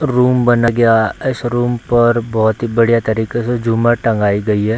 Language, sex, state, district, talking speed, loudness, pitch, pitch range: Hindi, male, Bihar, Darbhanga, 190 wpm, -14 LUFS, 115 Hz, 110-120 Hz